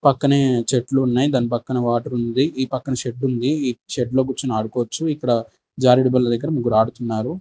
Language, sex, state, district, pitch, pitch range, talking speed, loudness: Telugu, male, Andhra Pradesh, Sri Satya Sai, 125 Hz, 120-135 Hz, 180 wpm, -20 LUFS